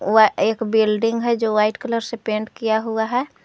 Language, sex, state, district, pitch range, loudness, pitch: Hindi, female, Uttar Pradesh, Lucknow, 220-230 Hz, -20 LUFS, 225 Hz